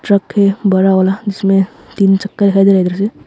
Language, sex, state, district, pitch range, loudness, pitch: Hindi, male, Arunachal Pradesh, Longding, 195-200 Hz, -13 LUFS, 195 Hz